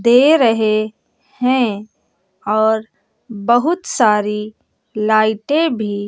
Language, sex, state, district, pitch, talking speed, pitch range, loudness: Hindi, female, Bihar, West Champaran, 220 Hz, 80 wpm, 215-245 Hz, -16 LUFS